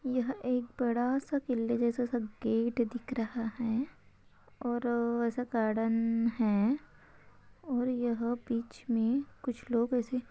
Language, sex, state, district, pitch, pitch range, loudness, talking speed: Hindi, female, Maharashtra, Pune, 240 Hz, 230-250 Hz, -32 LUFS, 115 wpm